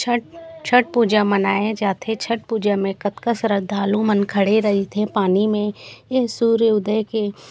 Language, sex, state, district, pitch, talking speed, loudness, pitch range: Chhattisgarhi, female, Chhattisgarh, Raigarh, 210 Hz, 150 wpm, -19 LUFS, 200-230 Hz